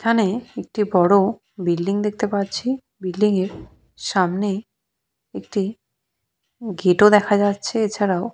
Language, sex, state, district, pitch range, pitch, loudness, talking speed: Bengali, female, West Bengal, Purulia, 190-210 Hz, 205 Hz, -20 LUFS, 115 wpm